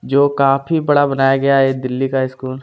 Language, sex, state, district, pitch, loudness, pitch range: Hindi, male, Chhattisgarh, Kabirdham, 135 Hz, -15 LUFS, 130-140 Hz